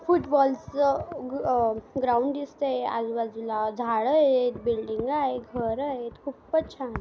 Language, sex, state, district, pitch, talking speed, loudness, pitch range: Marathi, male, Maharashtra, Dhule, 255 Hz, 110 wpm, -26 LUFS, 230-280 Hz